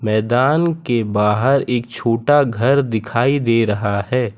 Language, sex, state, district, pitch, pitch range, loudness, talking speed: Hindi, male, Gujarat, Valsad, 120 Hz, 110-135 Hz, -17 LUFS, 135 wpm